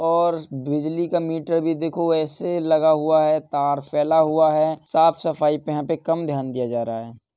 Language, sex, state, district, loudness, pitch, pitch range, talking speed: Hindi, male, Uttar Pradesh, Jalaun, -21 LUFS, 155 Hz, 150-165 Hz, 210 wpm